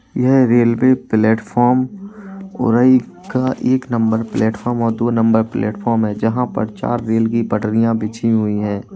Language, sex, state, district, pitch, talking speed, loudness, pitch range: Hindi, male, Uttar Pradesh, Jalaun, 115 Hz, 145 wpm, -16 LUFS, 110-125 Hz